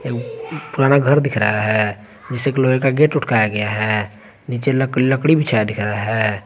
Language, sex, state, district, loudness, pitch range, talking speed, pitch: Hindi, male, Jharkhand, Garhwa, -17 LUFS, 105-135 Hz, 165 wpm, 115 Hz